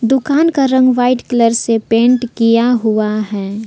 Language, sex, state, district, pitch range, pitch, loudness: Hindi, female, Jharkhand, Palamu, 225-255 Hz, 235 Hz, -13 LUFS